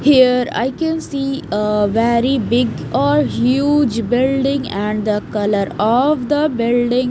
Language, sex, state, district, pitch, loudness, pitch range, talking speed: English, female, Haryana, Jhajjar, 245 Hz, -16 LUFS, 210-275 Hz, 145 wpm